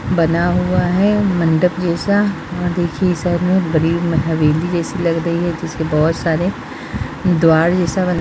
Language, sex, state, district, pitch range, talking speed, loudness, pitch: Bhojpuri, female, Bihar, Saran, 165-180 Hz, 185 wpm, -16 LUFS, 175 Hz